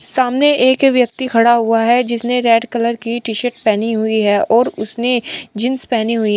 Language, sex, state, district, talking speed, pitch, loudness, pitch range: Hindi, male, Uttar Pradesh, Shamli, 190 wpm, 235 Hz, -15 LUFS, 225-250 Hz